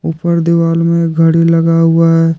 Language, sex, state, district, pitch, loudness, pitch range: Hindi, male, Jharkhand, Deoghar, 165 Hz, -11 LUFS, 165-170 Hz